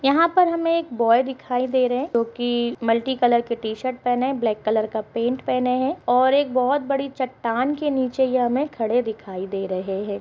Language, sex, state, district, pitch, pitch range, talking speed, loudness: Hindi, female, Uttar Pradesh, Gorakhpur, 245 Hz, 230-265 Hz, 210 wpm, -22 LUFS